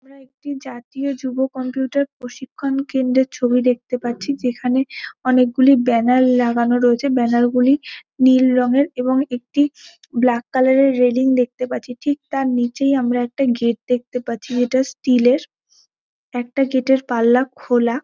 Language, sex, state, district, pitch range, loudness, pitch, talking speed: Bengali, female, West Bengal, Malda, 245-270 Hz, -18 LUFS, 255 Hz, 145 wpm